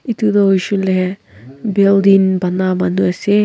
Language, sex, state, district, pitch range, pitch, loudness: Nagamese, female, Nagaland, Kohima, 185-200 Hz, 190 Hz, -14 LUFS